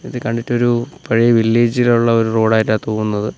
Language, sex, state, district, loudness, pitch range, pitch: Malayalam, male, Kerala, Kollam, -15 LUFS, 110-120 Hz, 115 Hz